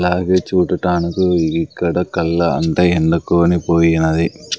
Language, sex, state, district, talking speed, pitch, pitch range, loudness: Telugu, male, Andhra Pradesh, Sri Satya Sai, 90 wpm, 85 Hz, 85-90 Hz, -16 LUFS